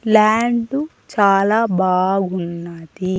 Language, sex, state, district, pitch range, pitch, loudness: Telugu, female, Andhra Pradesh, Annamaya, 185-225 Hz, 195 Hz, -17 LUFS